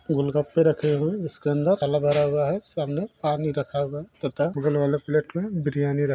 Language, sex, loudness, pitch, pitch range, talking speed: Maithili, female, -24 LUFS, 150 Hz, 145-160 Hz, 215 wpm